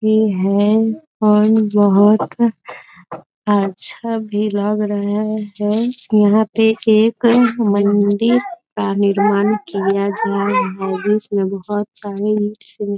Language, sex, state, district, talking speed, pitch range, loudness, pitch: Hindi, female, Bihar, East Champaran, 115 wpm, 200-220 Hz, -16 LUFS, 210 Hz